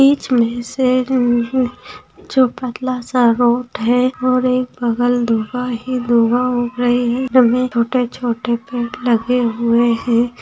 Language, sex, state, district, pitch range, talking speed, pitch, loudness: Hindi, female, Bihar, Saran, 235-255 Hz, 135 wpm, 245 Hz, -16 LUFS